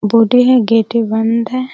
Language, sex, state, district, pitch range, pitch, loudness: Hindi, female, Bihar, Araria, 225-250 Hz, 230 Hz, -12 LUFS